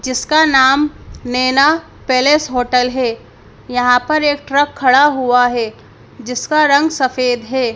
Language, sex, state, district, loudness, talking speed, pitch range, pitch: Hindi, female, Madhya Pradesh, Bhopal, -14 LUFS, 130 wpm, 250-290 Hz, 260 Hz